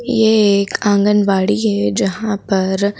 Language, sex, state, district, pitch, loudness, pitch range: Hindi, female, Madhya Pradesh, Bhopal, 205 Hz, -15 LUFS, 195-215 Hz